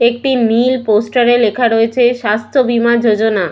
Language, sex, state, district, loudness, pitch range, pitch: Bengali, female, West Bengal, Malda, -13 LUFS, 220-245 Hz, 235 Hz